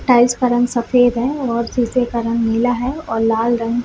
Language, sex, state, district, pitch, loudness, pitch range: Hindi, female, Jharkhand, Sahebganj, 240 Hz, -17 LUFS, 235-245 Hz